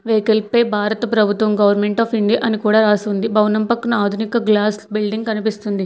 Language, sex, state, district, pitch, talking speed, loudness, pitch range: Telugu, female, Telangana, Hyderabad, 215 Hz, 165 wpm, -17 LUFS, 210-225 Hz